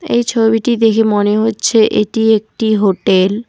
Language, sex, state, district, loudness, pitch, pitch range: Bengali, female, West Bengal, Alipurduar, -13 LUFS, 220 Hz, 210-225 Hz